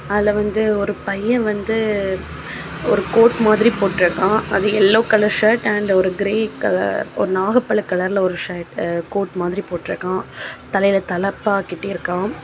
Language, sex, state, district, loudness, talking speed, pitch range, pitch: Tamil, female, Tamil Nadu, Kanyakumari, -18 LUFS, 145 wpm, 185-215 Hz, 200 Hz